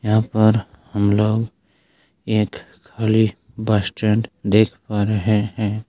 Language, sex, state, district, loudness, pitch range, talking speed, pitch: Hindi, male, Bihar, Madhepura, -19 LUFS, 105-110 Hz, 120 wpm, 110 Hz